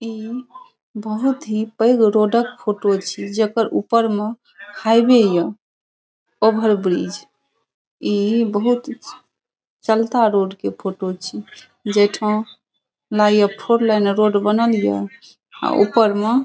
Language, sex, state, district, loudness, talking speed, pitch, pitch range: Maithili, female, Bihar, Saharsa, -18 LUFS, 125 wpm, 215 Hz, 205-230 Hz